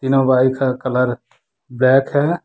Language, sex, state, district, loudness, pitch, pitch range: Hindi, male, Jharkhand, Deoghar, -16 LUFS, 130 Hz, 130-135 Hz